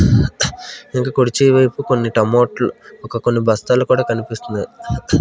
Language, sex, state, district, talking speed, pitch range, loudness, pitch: Telugu, male, Andhra Pradesh, Manyam, 115 wpm, 115-130 Hz, -17 LUFS, 120 Hz